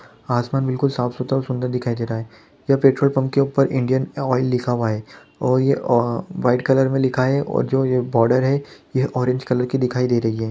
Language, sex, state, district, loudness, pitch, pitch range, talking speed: Hindi, male, Chhattisgarh, Kabirdham, -20 LUFS, 130 Hz, 125-135 Hz, 235 wpm